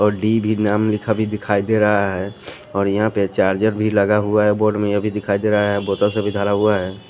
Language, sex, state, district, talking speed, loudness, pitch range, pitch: Hindi, male, Punjab, Pathankot, 270 wpm, -18 LUFS, 100-105 Hz, 105 Hz